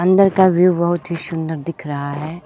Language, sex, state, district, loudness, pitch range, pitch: Hindi, female, Jharkhand, Palamu, -17 LUFS, 160-180 Hz, 170 Hz